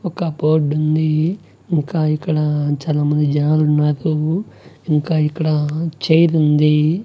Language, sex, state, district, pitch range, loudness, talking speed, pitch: Telugu, male, Andhra Pradesh, Annamaya, 150-160 Hz, -17 LUFS, 100 wpm, 155 Hz